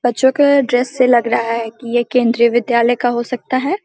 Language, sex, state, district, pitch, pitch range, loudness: Hindi, female, Bihar, Samastipur, 245 Hz, 235-255 Hz, -15 LUFS